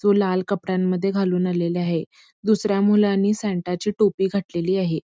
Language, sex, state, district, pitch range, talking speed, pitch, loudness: Marathi, female, Karnataka, Belgaum, 180-205 Hz, 155 wpm, 190 Hz, -22 LUFS